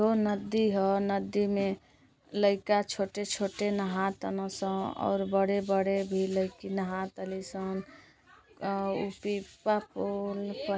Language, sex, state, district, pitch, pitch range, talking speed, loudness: Bhojpuri, female, Uttar Pradesh, Deoria, 195 Hz, 195-205 Hz, 110 wpm, -31 LUFS